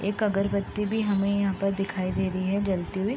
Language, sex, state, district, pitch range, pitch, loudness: Hindi, female, Uttar Pradesh, Deoria, 190-205 Hz, 200 Hz, -27 LUFS